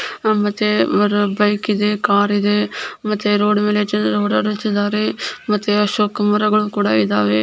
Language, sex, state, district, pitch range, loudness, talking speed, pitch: Kannada, male, Karnataka, Belgaum, 205-210 Hz, -17 LUFS, 115 wpm, 210 Hz